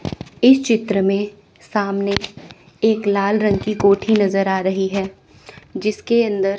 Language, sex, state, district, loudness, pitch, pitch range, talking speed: Hindi, female, Chandigarh, Chandigarh, -18 LUFS, 200 Hz, 195-215 Hz, 135 wpm